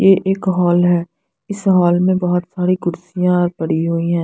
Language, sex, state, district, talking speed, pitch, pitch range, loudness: Hindi, female, Punjab, Fazilka, 185 wpm, 180 Hz, 170-185 Hz, -16 LUFS